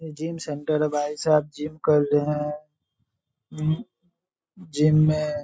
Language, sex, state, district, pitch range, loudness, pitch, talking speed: Hindi, male, Bihar, Saharsa, 150-160 Hz, -24 LUFS, 155 Hz, 120 wpm